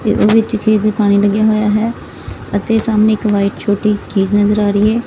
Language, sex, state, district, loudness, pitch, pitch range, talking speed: Punjabi, female, Punjab, Fazilka, -14 LUFS, 210 Hz, 205-220 Hz, 200 wpm